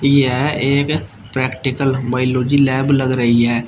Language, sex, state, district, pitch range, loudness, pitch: Hindi, male, Uttar Pradesh, Shamli, 125-140 Hz, -16 LUFS, 130 Hz